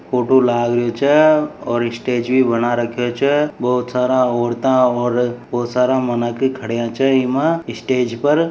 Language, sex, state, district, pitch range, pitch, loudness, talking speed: Marwari, male, Rajasthan, Nagaur, 120-130 Hz, 125 Hz, -17 LUFS, 150 wpm